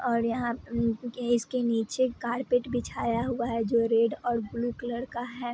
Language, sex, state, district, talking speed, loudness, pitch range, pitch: Hindi, female, Bihar, Vaishali, 160 wpm, -29 LUFS, 230-245 Hz, 240 Hz